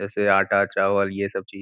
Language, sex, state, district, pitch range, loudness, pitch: Hindi, male, Uttar Pradesh, Gorakhpur, 95-100 Hz, -21 LUFS, 100 Hz